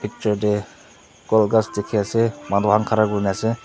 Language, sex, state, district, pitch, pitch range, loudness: Nagamese, male, Nagaland, Dimapur, 105 Hz, 105-110 Hz, -20 LUFS